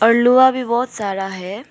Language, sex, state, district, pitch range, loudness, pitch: Hindi, female, Arunachal Pradesh, Papum Pare, 195-250 Hz, -16 LUFS, 235 Hz